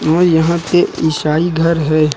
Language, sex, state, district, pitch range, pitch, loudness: Hindi, male, Uttar Pradesh, Lucknow, 155-170 Hz, 160 Hz, -14 LUFS